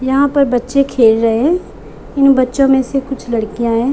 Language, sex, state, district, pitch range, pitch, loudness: Hindi, female, Bihar, Gopalganj, 235-275 Hz, 265 Hz, -13 LUFS